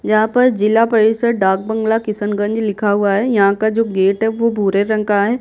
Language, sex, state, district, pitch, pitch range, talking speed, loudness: Hindi, female, Bihar, Kishanganj, 215 Hz, 205-225 Hz, 220 wpm, -15 LUFS